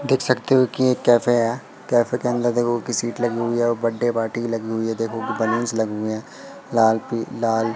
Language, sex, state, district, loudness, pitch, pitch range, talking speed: Hindi, male, Madhya Pradesh, Katni, -21 LUFS, 115 Hz, 115-120 Hz, 225 wpm